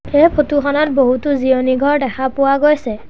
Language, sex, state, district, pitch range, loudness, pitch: Assamese, male, Assam, Sonitpur, 260-290 Hz, -14 LUFS, 275 Hz